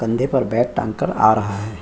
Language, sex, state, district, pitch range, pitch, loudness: Hindi, male, Bihar, Lakhisarai, 105-120 Hz, 110 Hz, -19 LUFS